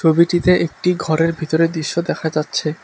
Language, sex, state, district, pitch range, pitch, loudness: Bengali, male, West Bengal, Alipurduar, 160-170 Hz, 165 Hz, -18 LUFS